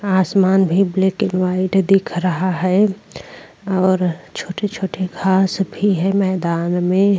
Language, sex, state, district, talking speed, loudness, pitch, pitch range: Hindi, female, Uttar Pradesh, Jyotiba Phule Nagar, 125 wpm, -17 LUFS, 190 Hz, 185-195 Hz